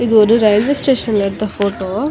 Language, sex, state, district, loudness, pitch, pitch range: Tamil, female, Tamil Nadu, Chennai, -14 LUFS, 215 Hz, 205-240 Hz